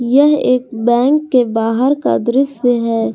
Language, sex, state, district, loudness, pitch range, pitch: Hindi, female, Jharkhand, Garhwa, -14 LUFS, 235-275 Hz, 250 Hz